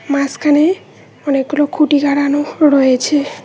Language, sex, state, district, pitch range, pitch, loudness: Bengali, female, West Bengal, Cooch Behar, 280-300 Hz, 290 Hz, -14 LUFS